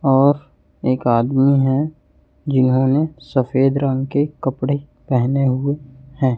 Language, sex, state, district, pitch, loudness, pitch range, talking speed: Hindi, male, Chhattisgarh, Raipur, 135 Hz, -18 LUFS, 130-140 Hz, 115 wpm